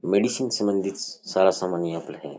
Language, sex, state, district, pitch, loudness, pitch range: Rajasthani, male, Rajasthan, Churu, 95 Hz, -25 LUFS, 90-105 Hz